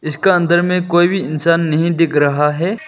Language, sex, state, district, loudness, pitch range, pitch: Hindi, male, Arunachal Pradesh, Lower Dibang Valley, -14 LUFS, 155-175 Hz, 170 Hz